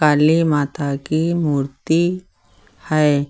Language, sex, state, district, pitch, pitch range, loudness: Hindi, male, Uttar Pradesh, Lucknow, 150 Hz, 145-165 Hz, -18 LUFS